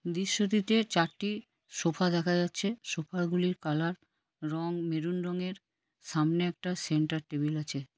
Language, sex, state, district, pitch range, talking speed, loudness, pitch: Bengali, female, West Bengal, Kolkata, 160-180 Hz, 120 wpm, -31 LUFS, 175 Hz